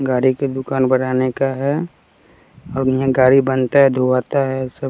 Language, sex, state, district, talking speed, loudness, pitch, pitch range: Hindi, male, Bihar, West Champaran, 170 wpm, -17 LUFS, 130 Hz, 130-135 Hz